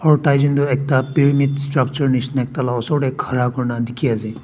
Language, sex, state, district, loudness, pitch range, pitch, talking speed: Nagamese, male, Nagaland, Dimapur, -18 LUFS, 125-140 Hz, 135 Hz, 200 wpm